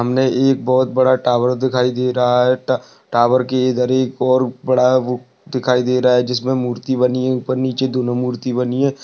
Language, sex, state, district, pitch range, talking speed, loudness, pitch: Hindi, male, Uttar Pradesh, Budaun, 125-130 Hz, 200 wpm, -17 LUFS, 125 Hz